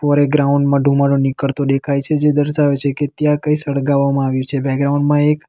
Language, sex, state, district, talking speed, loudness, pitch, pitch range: Gujarati, male, Gujarat, Valsad, 230 wpm, -15 LUFS, 140 Hz, 140-145 Hz